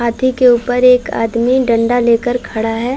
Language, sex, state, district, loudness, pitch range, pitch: Hindi, female, Chhattisgarh, Bilaspur, -13 LUFS, 230-250 Hz, 245 Hz